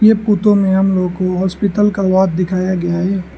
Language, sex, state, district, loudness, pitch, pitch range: Hindi, male, Arunachal Pradesh, Lower Dibang Valley, -15 LUFS, 190 Hz, 185-200 Hz